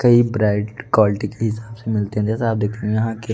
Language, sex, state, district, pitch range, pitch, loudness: Hindi, male, Delhi, New Delhi, 105-115 Hz, 110 Hz, -20 LUFS